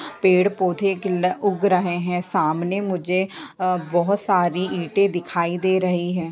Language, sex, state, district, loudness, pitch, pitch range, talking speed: Hindi, female, Jharkhand, Sahebganj, -21 LUFS, 180 Hz, 175-190 Hz, 160 wpm